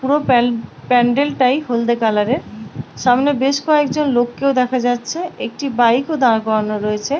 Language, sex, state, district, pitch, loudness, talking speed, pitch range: Bengali, female, West Bengal, Paschim Medinipur, 250 Hz, -17 LUFS, 160 wpm, 230-280 Hz